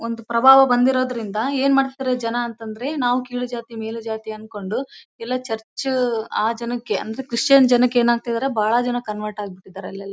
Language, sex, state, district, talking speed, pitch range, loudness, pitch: Kannada, female, Karnataka, Bellary, 150 wpm, 220-255 Hz, -20 LUFS, 235 Hz